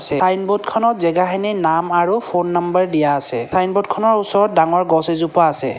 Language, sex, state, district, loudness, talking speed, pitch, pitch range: Assamese, male, Assam, Kamrup Metropolitan, -16 LUFS, 145 wpm, 175 Hz, 165-195 Hz